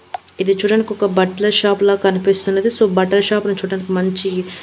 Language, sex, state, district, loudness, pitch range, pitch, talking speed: Telugu, female, Andhra Pradesh, Annamaya, -16 LUFS, 190-205 Hz, 195 Hz, 145 wpm